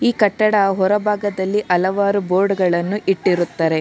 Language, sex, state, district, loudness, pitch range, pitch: Kannada, female, Karnataka, Bangalore, -17 LUFS, 185-205 Hz, 195 Hz